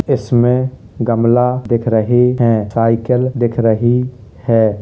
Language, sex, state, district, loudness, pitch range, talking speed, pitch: Hindi, male, Uttar Pradesh, Hamirpur, -14 LUFS, 115-125 Hz, 110 wpm, 120 Hz